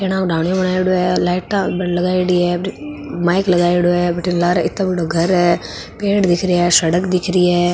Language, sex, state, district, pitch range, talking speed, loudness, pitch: Marwari, female, Rajasthan, Nagaur, 175-185 Hz, 155 wpm, -16 LUFS, 180 Hz